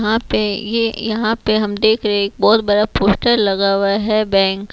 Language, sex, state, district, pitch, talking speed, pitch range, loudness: Hindi, female, Chhattisgarh, Raipur, 210 Hz, 230 wpm, 200-220 Hz, -16 LUFS